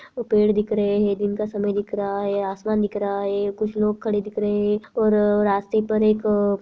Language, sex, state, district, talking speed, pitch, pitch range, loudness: Hindi, female, Bihar, Madhepura, 245 wpm, 210 Hz, 205-215 Hz, -22 LUFS